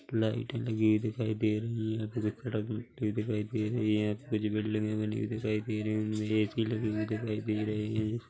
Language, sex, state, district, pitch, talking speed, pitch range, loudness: Hindi, male, Chhattisgarh, Korba, 110 Hz, 175 wpm, 105-110 Hz, -32 LUFS